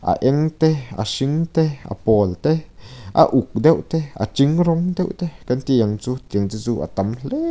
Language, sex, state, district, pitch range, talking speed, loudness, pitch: Mizo, male, Mizoram, Aizawl, 110-160 Hz, 225 wpm, -20 LUFS, 135 Hz